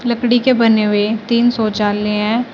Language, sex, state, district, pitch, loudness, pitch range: Hindi, female, Uttar Pradesh, Shamli, 225 Hz, -15 LUFS, 210-240 Hz